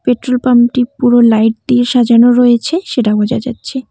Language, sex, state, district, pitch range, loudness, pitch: Bengali, female, West Bengal, Cooch Behar, 235-250 Hz, -11 LUFS, 245 Hz